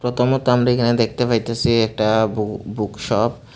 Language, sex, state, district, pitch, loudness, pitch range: Bengali, male, Tripura, Unakoti, 115 Hz, -19 LUFS, 110-125 Hz